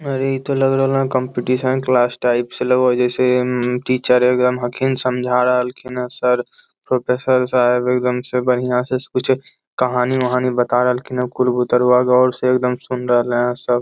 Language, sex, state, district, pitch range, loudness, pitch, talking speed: Magahi, male, Bihar, Lakhisarai, 125-130 Hz, -17 LUFS, 125 Hz, 145 wpm